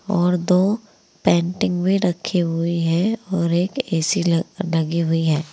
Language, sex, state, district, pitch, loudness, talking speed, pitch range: Hindi, female, Uttar Pradesh, Saharanpur, 175 Hz, -20 LUFS, 130 wpm, 165-190 Hz